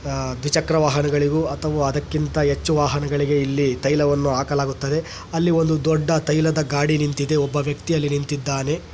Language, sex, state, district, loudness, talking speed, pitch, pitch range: Kannada, male, Karnataka, Chamarajanagar, -21 LUFS, 120 wpm, 145 Hz, 145-155 Hz